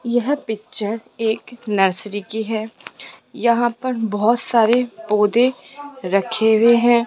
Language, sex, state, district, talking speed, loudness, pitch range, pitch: Hindi, female, Rajasthan, Jaipur, 120 wpm, -19 LUFS, 215-240 Hz, 225 Hz